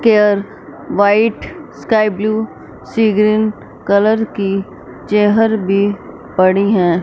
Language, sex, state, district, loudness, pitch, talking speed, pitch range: Hindi, female, Punjab, Fazilka, -14 LUFS, 210 Hz, 100 wpm, 195-220 Hz